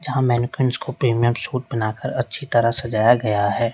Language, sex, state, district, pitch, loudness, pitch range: Hindi, male, Uttar Pradesh, Lalitpur, 120 Hz, -20 LUFS, 115-130 Hz